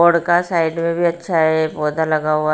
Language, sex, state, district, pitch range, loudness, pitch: Hindi, female, Bihar, Patna, 155-170 Hz, -17 LUFS, 165 Hz